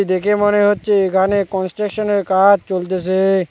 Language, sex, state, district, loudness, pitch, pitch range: Bengali, male, West Bengal, Cooch Behar, -16 LUFS, 195 Hz, 190-205 Hz